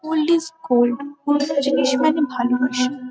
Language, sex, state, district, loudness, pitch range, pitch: Bengali, female, West Bengal, Kolkata, -20 LUFS, 250-305 Hz, 280 Hz